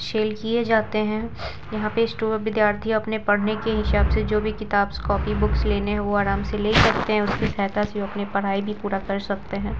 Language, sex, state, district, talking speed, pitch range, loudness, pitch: Hindi, female, Bihar, Vaishali, 215 wpm, 200-215 Hz, -23 LUFS, 210 Hz